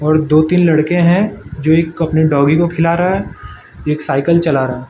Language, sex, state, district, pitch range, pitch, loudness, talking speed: Hindi, male, Gujarat, Valsad, 150-170 Hz, 160 Hz, -13 LUFS, 210 wpm